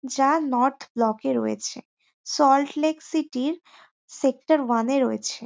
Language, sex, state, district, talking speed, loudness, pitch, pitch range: Bengali, female, West Bengal, North 24 Parganas, 145 wpm, -23 LUFS, 270 Hz, 250-300 Hz